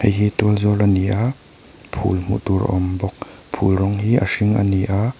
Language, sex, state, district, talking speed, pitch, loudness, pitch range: Mizo, male, Mizoram, Aizawl, 240 wpm, 100 Hz, -19 LUFS, 95-105 Hz